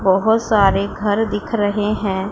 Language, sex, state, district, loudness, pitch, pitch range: Hindi, female, Punjab, Pathankot, -17 LUFS, 205 Hz, 195-215 Hz